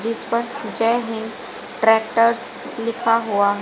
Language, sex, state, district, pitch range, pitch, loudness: Hindi, female, Haryana, Rohtak, 220-230 Hz, 230 Hz, -20 LUFS